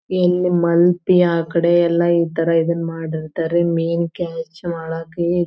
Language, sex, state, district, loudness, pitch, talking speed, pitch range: Kannada, female, Karnataka, Belgaum, -18 LUFS, 170 Hz, 130 wpm, 165-175 Hz